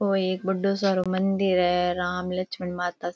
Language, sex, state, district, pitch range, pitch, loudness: Rajasthani, female, Rajasthan, Churu, 180-195 Hz, 185 Hz, -25 LUFS